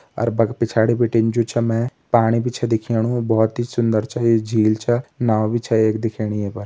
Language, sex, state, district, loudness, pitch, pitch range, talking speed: Hindi, male, Uttarakhand, Tehri Garhwal, -19 LUFS, 115 Hz, 110-120 Hz, 215 wpm